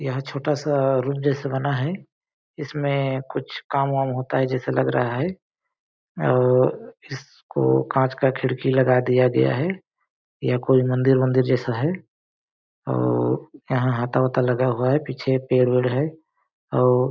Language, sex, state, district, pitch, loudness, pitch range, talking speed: Hindi, male, Chhattisgarh, Balrampur, 130 Hz, -22 LUFS, 125-140 Hz, 155 wpm